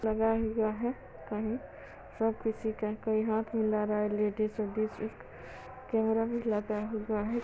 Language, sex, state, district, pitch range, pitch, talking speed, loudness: Hindi, female, Bihar, East Champaran, 210-225 Hz, 220 Hz, 160 wpm, -32 LUFS